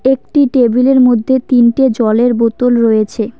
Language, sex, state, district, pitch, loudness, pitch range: Bengali, female, West Bengal, Cooch Behar, 245 Hz, -11 LUFS, 230-260 Hz